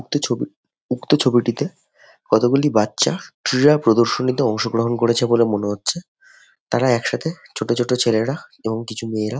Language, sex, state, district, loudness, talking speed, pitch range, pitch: Bengali, male, West Bengal, Jhargram, -19 LUFS, 140 wpm, 115-145 Hz, 120 Hz